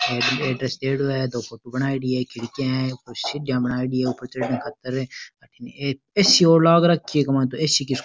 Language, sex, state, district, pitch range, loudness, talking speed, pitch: Rajasthani, male, Rajasthan, Nagaur, 125-140 Hz, -21 LUFS, 200 wpm, 130 Hz